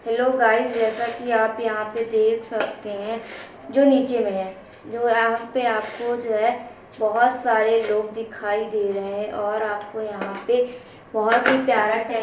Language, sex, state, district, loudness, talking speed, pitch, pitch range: Hindi, female, Bihar, Begusarai, -22 LUFS, 180 wpm, 225 Hz, 215-235 Hz